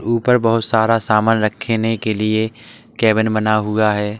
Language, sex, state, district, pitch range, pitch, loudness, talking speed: Hindi, male, Uttar Pradesh, Lalitpur, 110-115 Hz, 110 Hz, -17 LUFS, 155 wpm